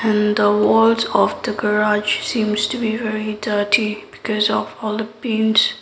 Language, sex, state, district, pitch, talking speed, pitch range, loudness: English, female, Sikkim, Gangtok, 215 Hz, 165 wpm, 210-220 Hz, -18 LUFS